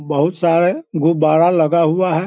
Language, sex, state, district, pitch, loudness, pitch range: Hindi, male, Bihar, Sitamarhi, 165 Hz, -15 LUFS, 155-175 Hz